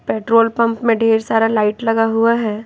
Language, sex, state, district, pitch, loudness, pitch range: Hindi, female, Bihar, Patna, 225 Hz, -15 LUFS, 225-230 Hz